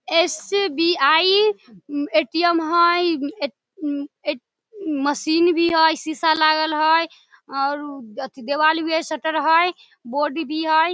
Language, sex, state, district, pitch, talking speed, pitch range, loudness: Maithili, female, Bihar, Samastipur, 315 Hz, 120 wpm, 290-335 Hz, -19 LUFS